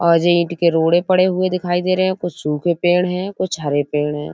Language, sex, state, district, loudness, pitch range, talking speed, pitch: Hindi, female, Uttar Pradesh, Budaun, -17 LUFS, 160-185 Hz, 275 wpm, 175 Hz